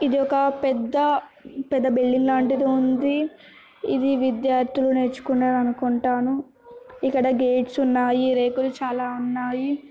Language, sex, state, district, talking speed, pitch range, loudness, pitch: Telugu, female, Telangana, Nalgonda, 105 wpm, 250-275 Hz, -22 LUFS, 260 Hz